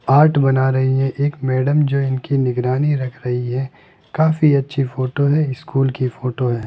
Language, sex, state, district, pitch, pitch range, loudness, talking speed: Hindi, male, Rajasthan, Jaipur, 135 Hz, 130-145 Hz, -18 LUFS, 180 wpm